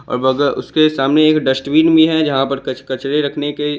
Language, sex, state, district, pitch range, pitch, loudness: Hindi, male, Chandigarh, Chandigarh, 135-155 Hz, 145 Hz, -15 LUFS